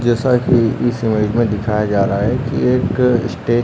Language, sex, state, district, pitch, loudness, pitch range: Hindi, male, Uttarakhand, Uttarkashi, 120 Hz, -16 LUFS, 105-125 Hz